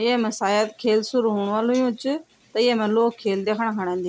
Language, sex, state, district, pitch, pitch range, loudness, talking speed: Garhwali, female, Uttarakhand, Tehri Garhwal, 220 Hz, 210-240 Hz, -22 LUFS, 235 wpm